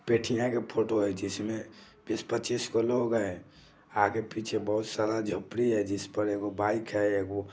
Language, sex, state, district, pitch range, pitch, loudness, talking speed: Hindi, male, Bihar, Vaishali, 105-115 Hz, 110 Hz, -30 LUFS, 185 wpm